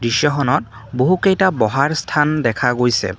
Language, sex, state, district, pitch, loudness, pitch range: Assamese, male, Assam, Kamrup Metropolitan, 135 Hz, -17 LUFS, 120-155 Hz